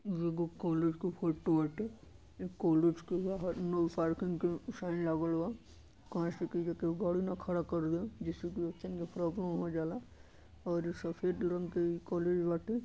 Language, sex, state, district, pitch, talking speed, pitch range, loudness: Bhojpuri, male, Uttar Pradesh, Deoria, 170 Hz, 185 wpm, 165-180 Hz, -36 LUFS